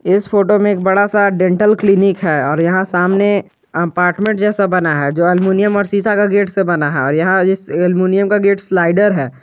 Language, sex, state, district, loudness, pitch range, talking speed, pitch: Hindi, male, Jharkhand, Garhwa, -13 LUFS, 175-205 Hz, 205 wpm, 190 Hz